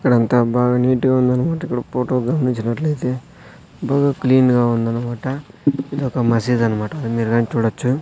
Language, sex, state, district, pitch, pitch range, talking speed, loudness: Telugu, male, Andhra Pradesh, Sri Satya Sai, 125 Hz, 120-135 Hz, 125 wpm, -18 LUFS